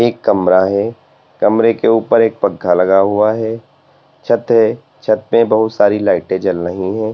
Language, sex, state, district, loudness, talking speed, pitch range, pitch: Hindi, male, Uttar Pradesh, Lalitpur, -14 LUFS, 175 wpm, 95-115 Hz, 110 Hz